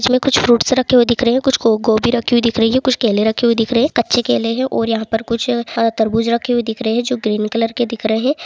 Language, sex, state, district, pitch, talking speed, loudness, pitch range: Hindi, female, Bihar, Saharsa, 235 Hz, 305 wpm, -15 LUFS, 225-250 Hz